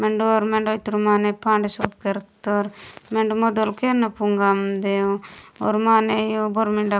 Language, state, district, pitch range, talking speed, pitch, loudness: Gondi, Chhattisgarh, Sukma, 205-220 Hz, 135 wpm, 210 Hz, -21 LUFS